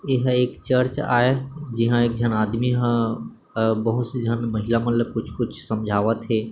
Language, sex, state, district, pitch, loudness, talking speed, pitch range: Chhattisgarhi, male, Chhattisgarh, Bilaspur, 120 Hz, -22 LUFS, 175 wpm, 115-125 Hz